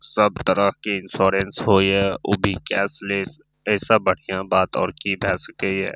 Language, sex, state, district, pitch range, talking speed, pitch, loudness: Maithili, male, Bihar, Saharsa, 95-100 Hz, 170 wpm, 95 Hz, -21 LUFS